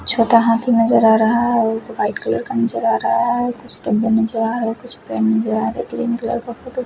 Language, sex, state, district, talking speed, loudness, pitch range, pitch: Hindi, male, Odisha, Khordha, 255 wpm, -17 LUFS, 220-240 Hz, 230 Hz